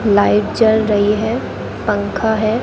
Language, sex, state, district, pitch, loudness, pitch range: Hindi, female, Rajasthan, Bikaner, 215 Hz, -16 LUFS, 205-220 Hz